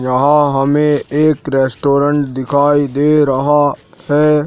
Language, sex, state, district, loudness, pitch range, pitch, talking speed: Hindi, male, Madhya Pradesh, Dhar, -13 LUFS, 140-150 Hz, 145 Hz, 105 wpm